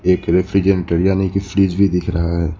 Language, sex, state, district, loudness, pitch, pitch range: Hindi, male, West Bengal, Alipurduar, -17 LUFS, 90 Hz, 85-95 Hz